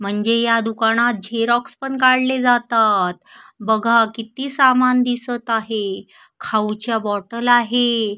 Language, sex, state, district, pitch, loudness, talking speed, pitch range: Marathi, female, Maharashtra, Sindhudurg, 230 Hz, -18 LUFS, 115 wpm, 220-245 Hz